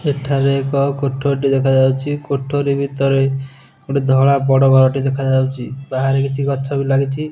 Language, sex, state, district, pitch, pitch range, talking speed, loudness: Odia, male, Odisha, Nuapada, 135 Hz, 135-140 Hz, 140 wpm, -16 LUFS